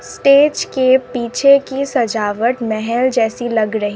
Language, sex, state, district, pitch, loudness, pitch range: Hindi, female, Assam, Sonitpur, 240 Hz, -15 LUFS, 220-265 Hz